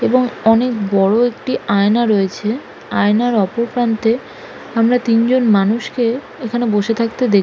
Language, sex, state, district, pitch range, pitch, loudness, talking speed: Bengali, female, West Bengal, Malda, 215-245 Hz, 230 Hz, -16 LUFS, 130 wpm